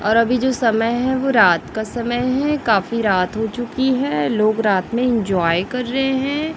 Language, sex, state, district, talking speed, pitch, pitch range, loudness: Hindi, female, Chhattisgarh, Raipur, 200 wpm, 235 Hz, 215-260 Hz, -18 LUFS